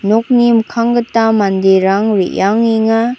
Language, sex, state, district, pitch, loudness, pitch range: Garo, female, Meghalaya, North Garo Hills, 225 Hz, -12 LUFS, 200-230 Hz